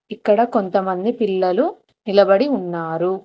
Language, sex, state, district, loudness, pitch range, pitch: Telugu, female, Telangana, Hyderabad, -18 LUFS, 190-235 Hz, 200 Hz